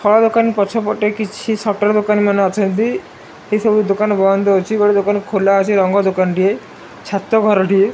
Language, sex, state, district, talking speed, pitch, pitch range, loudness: Odia, male, Odisha, Malkangiri, 165 wpm, 205 Hz, 195-215 Hz, -15 LUFS